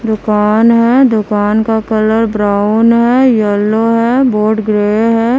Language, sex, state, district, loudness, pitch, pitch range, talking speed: Hindi, female, Bihar, Kaimur, -11 LUFS, 220 Hz, 210-230 Hz, 135 wpm